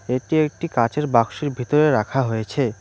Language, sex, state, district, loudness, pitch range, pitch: Bengali, male, West Bengal, Cooch Behar, -21 LUFS, 115-150 Hz, 135 Hz